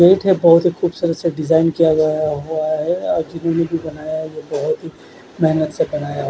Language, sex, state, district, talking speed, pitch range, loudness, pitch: Hindi, male, Odisha, Khordha, 135 wpm, 155-170 Hz, -18 LUFS, 165 Hz